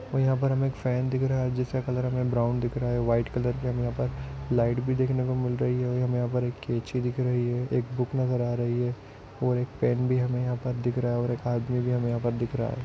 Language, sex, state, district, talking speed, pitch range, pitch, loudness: Hindi, male, Maharashtra, Dhule, 285 wpm, 120-125 Hz, 125 Hz, -28 LUFS